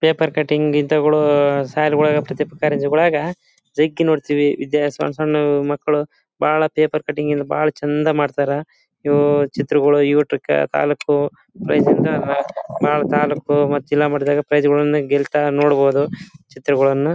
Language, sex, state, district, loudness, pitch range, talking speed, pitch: Kannada, male, Karnataka, Bellary, -18 LUFS, 145-150 Hz, 85 wpm, 145 Hz